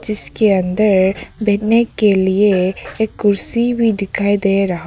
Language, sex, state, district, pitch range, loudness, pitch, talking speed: Hindi, female, Arunachal Pradesh, Papum Pare, 195-215 Hz, -15 LUFS, 205 Hz, 135 wpm